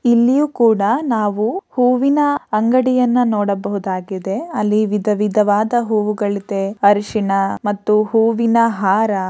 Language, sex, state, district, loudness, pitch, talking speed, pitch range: Kannada, female, Karnataka, Shimoga, -16 LUFS, 215 Hz, 95 wpm, 205-240 Hz